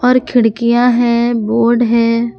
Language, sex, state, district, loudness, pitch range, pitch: Hindi, female, Jharkhand, Palamu, -12 LUFS, 230-240 Hz, 235 Hz